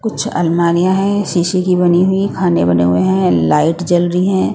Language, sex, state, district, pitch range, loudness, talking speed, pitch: Hindi, female, Odisha, Nuapada, 150-190 Hz, -13 LUFS, 200 wpm, 175 Hz